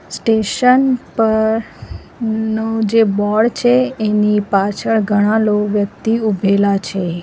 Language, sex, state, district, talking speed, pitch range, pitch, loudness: Gujarati, female, Gujarat, Valsad, 100 wpm, 205-225 Hz, 220 Hz, -15 LUFS